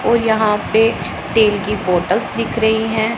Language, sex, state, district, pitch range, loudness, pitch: Hindi, male, Punjab, Pathankot, 210-225 Hz, -16 LUFS, 220 Hz